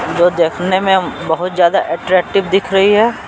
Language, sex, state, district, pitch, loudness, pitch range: Hindi, male, Bihar, Patna, 185 Hz, -14 LUFS, 175-195 Hz